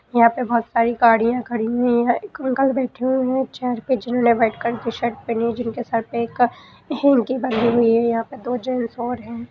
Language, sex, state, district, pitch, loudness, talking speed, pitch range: Hindi, female, Bihar, Purnia, 240 Hz, -20 LUFS, 225 wpm, 235-250 Hz